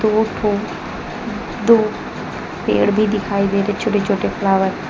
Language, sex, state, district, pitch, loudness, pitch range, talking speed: Hindi, female, Jharkhand, Deoghar, 210 Hz, -18 LUFS, 200-215 Hz, 160 wpm